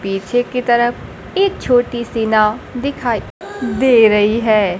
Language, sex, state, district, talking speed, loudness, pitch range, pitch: Hindi, female, Bihar, Kaimur, 135 wpm, -15 LUFS, 215-245 Hz, 235 Hz